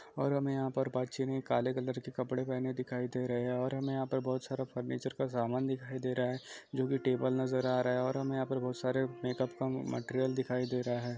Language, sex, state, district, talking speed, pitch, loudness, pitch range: Hindi, male, Andhra Pradesh, Chittoor, 245 wpm, 130 Hz, -35 LUFS, 125-130 Hz